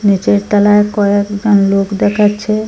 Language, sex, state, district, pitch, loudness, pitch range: Bengali, female, Assam, Hailakandi, 205 Hz, -12 LUFS, 200-210 Hz